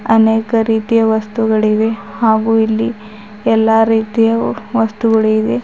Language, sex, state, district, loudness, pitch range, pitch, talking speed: Kannada, female, Karnataka, Bidar, -14 LUFS, 220-225 Hz, 220 Hz, 95 wpm